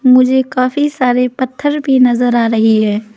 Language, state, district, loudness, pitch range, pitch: Hindi, Arunachal Pradesh, Lower Dibang Valley, -12 LUFS, 235-265 Hz, 255 Hz